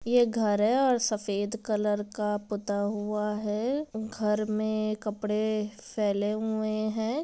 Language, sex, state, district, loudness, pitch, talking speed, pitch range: Hindi, female, Bihar, Gopalganj, -29 LUFS, 215 Hz, 125 wpm, 210-220 Hz